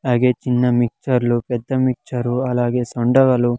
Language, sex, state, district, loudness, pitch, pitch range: Telugu, male, Andhra Pradesh, Sri Satya Sai, -18 LUFS, 125 Hz, 120-125 Hz